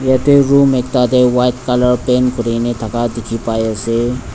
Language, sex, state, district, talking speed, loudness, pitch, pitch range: Nagamese, male, Nagaland, Dimapur, 140 wpm, -14 LUFS, 125 Hz, 115-125 Hz